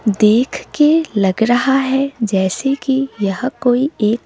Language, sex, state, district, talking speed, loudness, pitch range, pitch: Hindi, female, Sikkim, Gangtok, 140 wpm, -16 LUFS, 215-270 Hz, 245 Hz